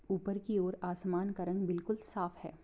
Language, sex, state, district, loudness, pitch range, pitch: Hindi, female, Bihar, Begusarai, -37 LUFS, 175-200 Hz, 185 Hz